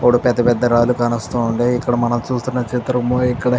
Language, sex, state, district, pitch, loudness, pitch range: Telugu, male, Andhra Pradesh, Chittoor, 120 Hz, -17 LUFS, 120-125 Hz